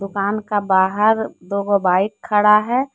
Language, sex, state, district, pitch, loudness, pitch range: Hindi, female, Jharkhand, Deoghar, 205 Hz, -17 LUFS, 195-215 Hz